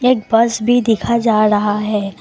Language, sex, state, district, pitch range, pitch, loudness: Hindi, female, Assam, Kamrup Metropolitan, 210-235 Hz, 220 Hz, -15 LUFS